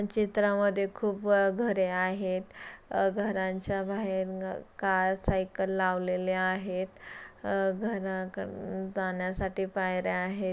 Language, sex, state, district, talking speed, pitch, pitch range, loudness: Marathi, female, Maharashtra, Solapur, 85 wpm, 190 Hz, 185-200 Hz, -30 LUFS